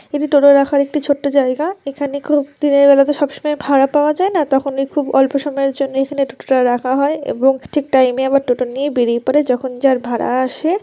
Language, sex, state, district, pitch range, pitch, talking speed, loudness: Bengali, female, West Bengal, Jalpaiguri, 265-290 Hz, 280 Hz, 210 wpm, -15 LUFS